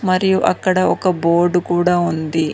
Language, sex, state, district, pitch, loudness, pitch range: Telugu, female, Telangana, Mahabubabad, 175 Hz, -16 LUFS, 170-185 Hz